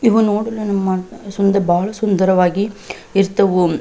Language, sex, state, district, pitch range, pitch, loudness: Kannada, female, Karnataka, Belgaum, 185-210 Hz, 200 Hz, -16 LUFS